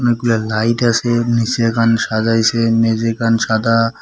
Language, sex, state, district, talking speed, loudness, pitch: Bengali, male, West Bengal, Cooch Behar, 105 wpm, -15 LUFS, 115 Hz